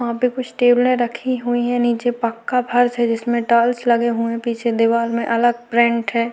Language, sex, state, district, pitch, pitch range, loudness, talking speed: Hindi, female, Chhattisgarh, Korba, 235 Hz, 235-245 Hz, -18 LUFS, 210 wpm